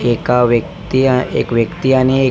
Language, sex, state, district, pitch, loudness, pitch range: Marathi, male, Maharashtra, Nagpur, 130 Hz, -14 LUFS, 120-135 Hz